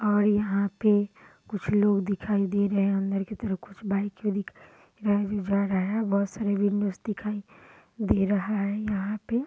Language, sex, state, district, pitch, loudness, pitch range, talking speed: Hindi, female, Bihar, Purnia, 205 Hz, -27 LUFS, 200-210 Hz, 190 wpm